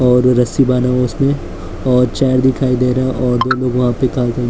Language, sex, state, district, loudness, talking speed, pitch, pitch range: Hindi, male, Maharashtra, Mumbai Suburban, -14 LUFS, 255 wpm, 125 Hz, 125-130 Hz